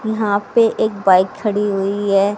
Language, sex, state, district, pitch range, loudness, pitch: Hindi, female, Haryana, Rohtak, 200-220 Hz, -16 LUFS, 205 Hz